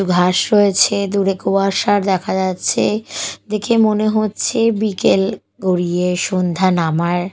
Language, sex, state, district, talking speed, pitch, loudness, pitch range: Bengali, female, Odisha, Malkangiri, 105 wpm, 195 Hz, -16 LUFS, 180-210 Hz